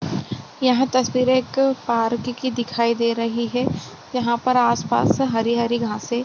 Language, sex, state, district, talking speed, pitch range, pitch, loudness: Hindi, female, Bihar, Gopalganj, 155 wpm, 235-255 Hz, 240 Hz, -21 LUFS